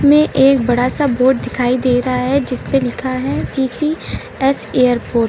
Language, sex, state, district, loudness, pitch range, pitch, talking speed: Hindi, female, Uttar Pradesh, Lucknow, -16 LUFS, 250-275 Hz, 260 Hz, 180 wpm